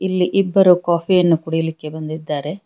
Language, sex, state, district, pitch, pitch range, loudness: Kannada, female, Karnataka, Bangalore, 170 Hz, 155-185 Hz, -17 LUFS